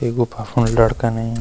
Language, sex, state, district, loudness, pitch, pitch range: Garhwali, male, Uttarakhand, Uttarkashi, -18 LUFS, 115 Hz, 115-120 Hz